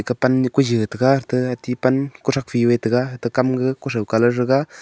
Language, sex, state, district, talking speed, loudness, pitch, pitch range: Wancho, male, Arunachal Pradesh, Longding, 85 wpm, -19 LUFS, 125 Hz, 120-130 Hz